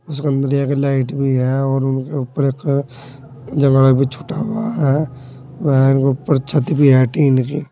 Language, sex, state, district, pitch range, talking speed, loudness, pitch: Hindi, male, Uttar Pradesh, Saharanpur, 135-140 Hz, 180 wpm, -16 LUFS, 135 Hz